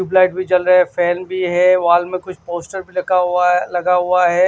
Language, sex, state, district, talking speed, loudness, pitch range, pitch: Hindi, male, Maharashtra, Washim, 255 wpm, -16 LUFS, 180-185 Hz, 180 Hz